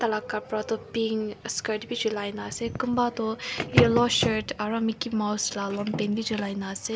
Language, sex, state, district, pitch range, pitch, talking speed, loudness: Nagamese, female, Nagaland, Kohima, 210-230 Hz, 220 Hz, 190 wpm, -27 LUFS